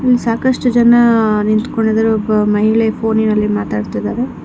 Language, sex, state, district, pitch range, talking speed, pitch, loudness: Kannada, female, Karnataka, Bangalore, 215-235 Hz, 110 wpm, 220 Hz, -14 LUFS